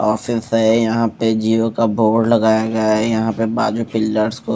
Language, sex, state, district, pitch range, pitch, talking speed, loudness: Hindi, male, Odisha, Malkangiri, 110-115 Hz, 110 Hz, 200 wpm, -17 LUFS